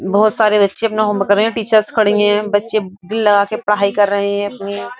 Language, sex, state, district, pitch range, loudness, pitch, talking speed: Hindi, male, Uttar Pradesh, Jyotiba Phule Nagar, 200-215 Hz, -14 LUFS, 210 Hz, 230 wpm